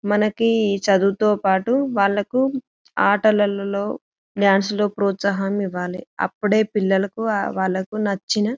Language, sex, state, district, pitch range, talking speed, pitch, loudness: Telugu, female, Telangana, Karimnagar, 195-215 Hz, 100 wpm, 205 Hz, -20 LUFS